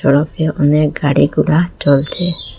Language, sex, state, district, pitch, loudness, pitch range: Bengali, female, Assam, Hailakandi, 150 Hz, -14 LUFS, 140-160 Hz